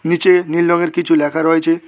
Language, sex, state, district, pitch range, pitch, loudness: Bengali, male, West Bengal, Cooch Behar, 160-175 Hz, 170 Hz, -14 LUFS